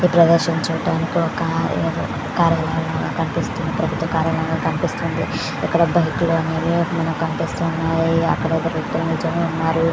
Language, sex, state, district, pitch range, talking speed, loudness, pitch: Telugu, female, Andhra Pradesh, Visakhapatnam, 165-170 Hz, 105 wpm, -20 LUFS, 165 Hz